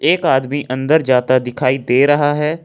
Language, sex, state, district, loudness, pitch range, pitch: Hindi, male, Jharkhand, Ranchi, -15 LUFS, 130-150 Hz, 135 Hz